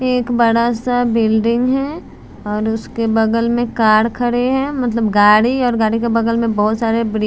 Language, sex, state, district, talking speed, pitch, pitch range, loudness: Hindi, female, Bihar, Patna, 165 wpm, 230 Hz, 220-245 Hz, -15 LUFS